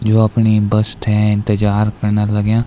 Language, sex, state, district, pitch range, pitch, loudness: Garhwali, male, Uttarakhand, Tehri Garhwal, 105-110 Hz, 105 Hz, -15 LUFS